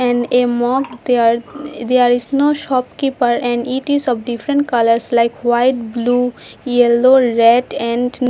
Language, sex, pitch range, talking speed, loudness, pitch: English, female, 240-260 Hz, 160 wpm, -15 LUFS, 245 Hz